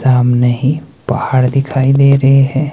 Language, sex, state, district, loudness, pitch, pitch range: Hindi, male, Himachal Pradesh, Shimla, -12 LUFS, 135 Hz, 125-140 Hz